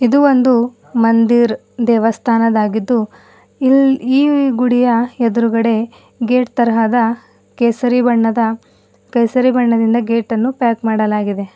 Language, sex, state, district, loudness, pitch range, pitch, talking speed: Kannada, female, Karnataka, Bidar, -14 LUFS, 230-250 Hz, 235 Hz, 95 wpm